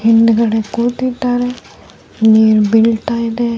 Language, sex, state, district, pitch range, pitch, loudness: Kannada, female, Karnataka, Dharwad, 220-240 Hz, 230 Hz, -13 LUFS